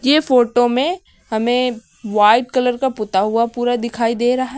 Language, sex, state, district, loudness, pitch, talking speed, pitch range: Hindi, female, Uttar Pradesh, Lucknow, -17 LUFS, 245 Hz, 185 wpm, 230-255 Hz